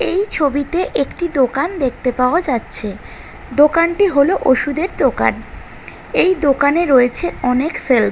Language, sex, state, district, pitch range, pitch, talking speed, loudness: Bengali, female, West Bengal, North 24 Parganas, 255-345 Hz, 285 Hz, 125 wpm, -16 LUFS